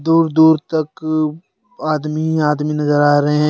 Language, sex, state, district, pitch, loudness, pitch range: Hindi, male, Jharkhand, Deoghar, 155 Hz, -16 LUFS, 150-160 Hz